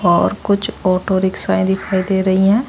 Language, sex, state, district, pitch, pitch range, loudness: Hindi, female, Uttar Pradesh, Saharanpur, 190 Hz, 185-200 Hz, -16 LUFS